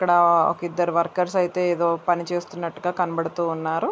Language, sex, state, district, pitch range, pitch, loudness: Telugu, female, Andhra Pradesh, Visakhapatnam, 170-175 Hz, 175 Hz, -23 LUFS